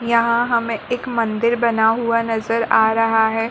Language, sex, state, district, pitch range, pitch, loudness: Hindi, female, Chhattisgarh, Bilaspur, 225-235 Hz, 230 Hz, -18 LUFS